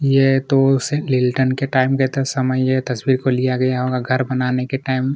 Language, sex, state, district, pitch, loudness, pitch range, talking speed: Hindi, male, Chhattisgarh, Kabirdham, 130 Hz, -18 LUFS, 130-135 Hz, 185 wpm